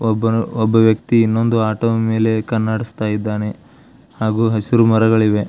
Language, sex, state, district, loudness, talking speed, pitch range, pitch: Kannada, male, Karnataka, Belgaum, -16 LUFS, 130 wpm, 110-115 Hz, 110 Hz